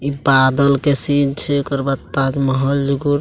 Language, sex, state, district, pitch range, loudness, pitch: Hindi, male, Bihar, Araria, 135-145 Hz, -16 LUFS, 140 Hz